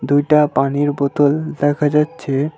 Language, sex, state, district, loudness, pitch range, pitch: Bengali, male, West Bengal, Alipurduar, -16 LUFS, 140-150 Hz, 145 Hz